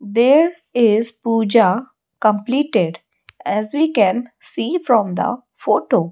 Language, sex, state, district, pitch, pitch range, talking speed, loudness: English, female, Odisha, Malkangiri, 230 Hz, 215-255 Hz, 110 wpm, -17 LUFS